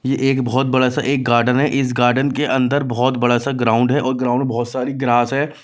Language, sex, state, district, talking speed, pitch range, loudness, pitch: Hindi, male, Bihar, West Champaran, 255 wpm, 120-135 Hz, -17 LUFS, 130 Hz